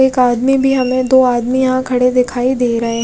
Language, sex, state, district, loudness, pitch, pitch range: Hindi, female, Odisha, Khordha, -13 LUFS, 255 Hz, 245-260 Hz